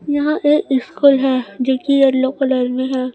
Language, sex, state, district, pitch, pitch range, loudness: Hindi, female, Chhattisgarh, Raipur, 265 Hz, 260-280 Hz, -16 LUFS